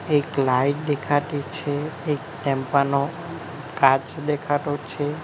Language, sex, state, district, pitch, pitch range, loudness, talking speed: Gujarati, male, Gujarat, Valsad, 145 Hz, 140-150 Hz, -23 LUFS, 115 wpm